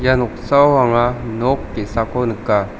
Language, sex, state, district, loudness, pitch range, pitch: Garo, male, Meghalaya, South Garo Hills, -17 LUFS, 115-130 Hz, 120 Hz